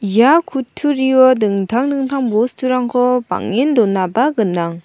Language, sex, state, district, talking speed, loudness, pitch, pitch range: Garo, female, Meghalaya, South Garo Hills, 100 wpm, -15 LUFS, 245 Hz, 210-265 Hz